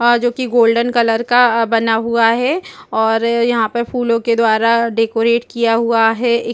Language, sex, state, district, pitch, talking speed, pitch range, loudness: Hindi, female, Chhattisgarh, Rajnandgaon, 235 Hz, 200 wpm, 225-240 Hz, -15 LUFS